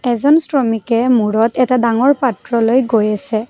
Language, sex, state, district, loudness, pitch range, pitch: Assamese, female, Assam, Kamrup Metropolitan, -14 LUFS, 225-255 Hz, 240 Hz